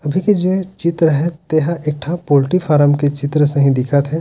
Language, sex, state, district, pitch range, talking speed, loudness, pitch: Hindi, male, Chhattisgarh, Raigarh, 145-170 Hz, 215 wpm, -15 LUFS, 155 Hz